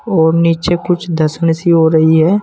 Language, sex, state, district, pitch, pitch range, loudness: Hindi, male, Uttar Pradesh, Saharanpur, 165 Hz, 160-175 Hz, -12 LUFS